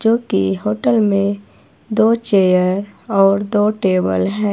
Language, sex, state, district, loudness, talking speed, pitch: Hindi, female, Himachal Pradesh, Shimla, -16 LUFS, 120 wpm, 190 Hz